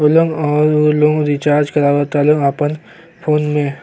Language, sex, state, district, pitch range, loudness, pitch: Bhojpuri, male, Uttar Pradesh, Gorakhpur, 145-150 Hz, -14 LUFS, 150 Hz